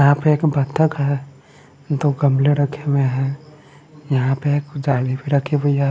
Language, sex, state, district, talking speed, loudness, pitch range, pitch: Hindi, male, Punjab, Fazilka, 180 wpm, -19 LUFS, 140-145 Hz, 145 Hz